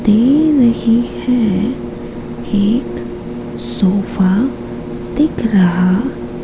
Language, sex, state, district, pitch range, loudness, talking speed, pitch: Hindi, female, Madhya Pradesh, Katni, 185-240 Hz, -15 LUFS, 65 wpm, 205 Hz